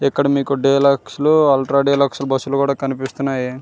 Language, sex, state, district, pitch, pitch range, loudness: Telugu, male, Andhra Pradesh, Srikakulam, 140 Hz, 135-140 Hz, -17 LUFS